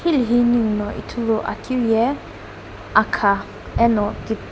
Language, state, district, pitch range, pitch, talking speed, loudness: Sumi, Nagaland, Dimapur, 210-240 Hz, 225 Hz, 105 wpm, -20 LUFS